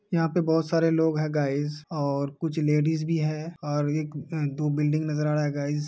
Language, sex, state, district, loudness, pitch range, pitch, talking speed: Hindi, male, Uttar Pradesh, Deoria, -26 LUFS, 150-160 Hz, 150 Hz, 235 wpm